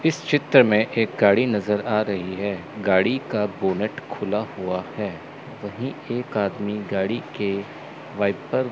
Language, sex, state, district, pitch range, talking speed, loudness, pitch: Hindi, male, Chandigarh, Chandigarh, 100-120 Hz, 150 wpm, -23 LUFS, 105 Hz